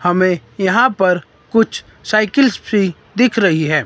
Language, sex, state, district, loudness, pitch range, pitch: Hindi, male, Himachal Pradesh, Shimla, -15 LUFS, 175-225 Hz, 195 Hz